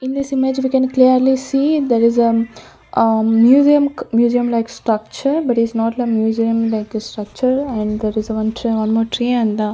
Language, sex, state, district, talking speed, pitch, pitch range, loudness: English, female, Chandigarh, Chandigarh, 195 wpm, 230 Hz, 220-260 Hz, -16 LUFS